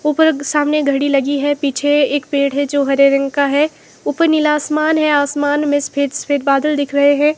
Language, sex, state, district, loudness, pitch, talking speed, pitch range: Hindi, female, Himachal Pradesh, Shimla, -15 LUFS, 285 Hz, 220 wpm, 280-300 Hz